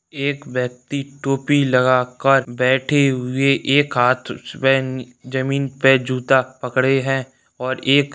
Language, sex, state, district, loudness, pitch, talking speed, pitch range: Hindi, female, Bihar, Saran, -18 LUFS, 135 Hz, 120 wpm, 130-140 Hz